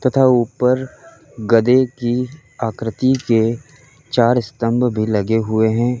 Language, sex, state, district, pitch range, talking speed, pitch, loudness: Hindi, male, Uttar Pradesh, Lalitpur, 115-130 Hz, 120 wpm, 120 Hz, -17 LUFS